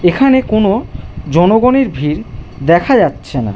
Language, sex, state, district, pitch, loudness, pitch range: Bengali, male, West Bengal, Jhargram, 175 Hz, -12 LUFS, 135-220 Hz